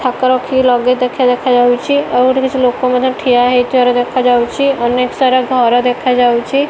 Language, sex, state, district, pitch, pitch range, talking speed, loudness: Odia, female, Odisha, Malkangiri, 250 Hz, 245-260 Hz, 160 wpm, -12 LUFS